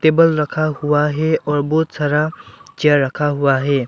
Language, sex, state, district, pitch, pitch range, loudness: Hindi, male, Arunachal Pradesh, Lower Dibang Valley, 150 Hz, 145-155 Hz, -17 LUFS